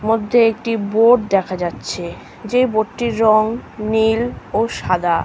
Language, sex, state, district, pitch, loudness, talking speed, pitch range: Bengali, female, West Bengal, Kolkata, 220 Hz, -17 LUFS, 150 wpm, 200-230 Hz